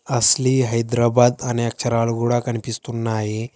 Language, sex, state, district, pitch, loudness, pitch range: Telugu, male, Telangana, Hyderabad, 120 Hz, -19 LUFS, 115-120 Hz